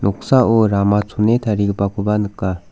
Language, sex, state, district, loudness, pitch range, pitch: Garo, male, Meghalaya, South Garo Hills, -17 LUFS, 100-110 Hz, 105 Hz